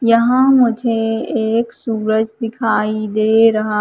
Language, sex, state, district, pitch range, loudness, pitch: Hindi, female, Madhya Pradesh, Katni, 215-230 Hz, -15 LUFS, 225 Hz